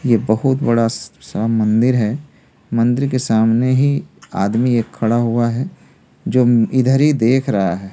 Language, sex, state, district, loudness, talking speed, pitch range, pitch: Hindi, male, Delhi, New Delhi, -16 LUFS, 160 wpm, 110-130 Hz, 115 Hz